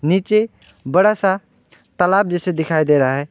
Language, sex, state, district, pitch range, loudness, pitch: Hindi, male, West Bengal, Alipurduar, 155-205 Hz, -17 LUFS, 180 Hz